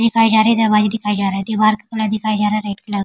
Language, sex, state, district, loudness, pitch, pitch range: Hindi, female, Bihar, Kishanganj, -16 LUFS, 215 Hz, 205-220 Hz